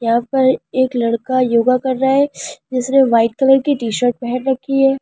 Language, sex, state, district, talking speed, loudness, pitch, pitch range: Hindi, female, Delhi, New Delhi, 205 wpm, -16 LUFS, 260 Hz, 240-270 Hz